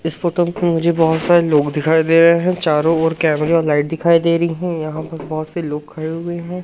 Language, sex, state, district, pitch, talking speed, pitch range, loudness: Hindi, male, Madhya Pradesh, Umaria, 165 Hz, 245 wpm, 155-170 Hz, -16 LUFS